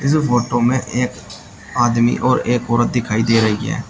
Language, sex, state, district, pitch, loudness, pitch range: Hindi, male, Uttar Pradesh, Shamli, 120 Hz, -17 LUFS, 115-125 Hz